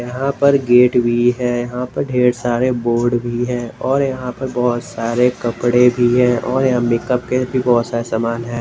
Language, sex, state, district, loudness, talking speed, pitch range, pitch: Hindi, male, Jharkhand, Garhwa, -16 LUFS, 200 wpm, 120-125 Hz, 125 Hz